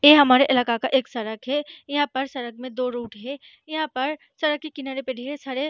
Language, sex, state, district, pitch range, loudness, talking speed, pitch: Hindi, female, Bihar, Samastipur, 255-290 Hz, -23 LUFS, 240 wpm, 270 Hz